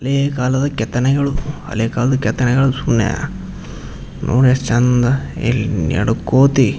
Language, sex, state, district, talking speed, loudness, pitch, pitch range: Kannada, male, Karnataka, Raichur, 115 wpm, -16 LUFS, 125 Hz, 115-135 Hz